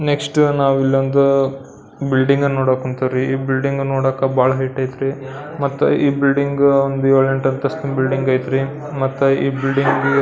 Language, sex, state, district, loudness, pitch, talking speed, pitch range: Kannada, male, Karnataka, Belgaum, -17 LUFS, 135 Hz, 135 wpm, 135-140 Hz